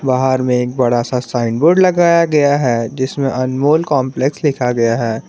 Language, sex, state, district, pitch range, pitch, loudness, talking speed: Hindi, male, Jharkhand, Garhwa, 125-145 Hz, 130 Hz, -14 LUFS, 180 wpm